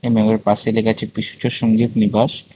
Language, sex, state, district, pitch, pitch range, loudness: Bengali, male, Tripura, West Tripura, 110 Hz, 110-115 Hz, -18 LUFS